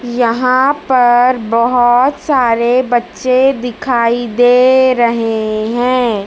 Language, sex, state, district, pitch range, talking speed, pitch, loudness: Hindi, female, Madhya Pradesh, Dhar, 235-255 Hz, 85 wpm, 245 Hz, -12 LUFS